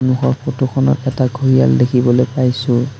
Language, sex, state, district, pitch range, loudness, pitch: Assamese, male, Assam, Sonitpur, 125-135 Hz, -15 LUFS, 130 Hz